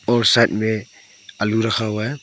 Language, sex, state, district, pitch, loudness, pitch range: Hindi, male, Arunachal Pradesh, Papum Pare, 110 Hz, -19 LUFS, 110-120 Hz